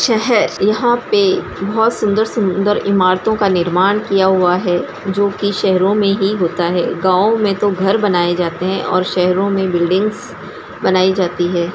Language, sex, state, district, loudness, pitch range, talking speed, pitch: Hindi, female, Bihar, Darbhanga, -15 LUFS, 180-205 Hz, 165 wpm, 195 Hz